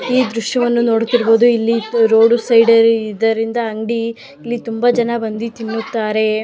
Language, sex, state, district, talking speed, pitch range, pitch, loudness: Kannada, female, Karnataka, Dharwad, 120 wpm, 225-235 Hz, 230 Hz, -15 LUFS